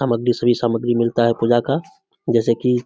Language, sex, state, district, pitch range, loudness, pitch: Hindi, male, Bihar, Samastipur, 115-120 Hz, -18 LUFS, 120 Hz